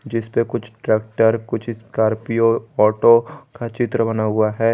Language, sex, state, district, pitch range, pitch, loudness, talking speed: Hindi, male, Jharkhand, Garhwa, 110-115 Hz, 115 Hz, -19 LUFS, 140 wpm